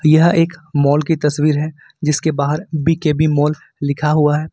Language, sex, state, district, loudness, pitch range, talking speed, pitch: Hindi, male, Jharkhand, Ranchi, -16 LUFS, 150-160 Hz, 170 wpm, 155 Hz